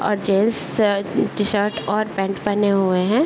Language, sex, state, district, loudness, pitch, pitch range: Hindi, male, Bihar, Bhagalpur, -20 LUFS, 205 Hz, 195-215 Hz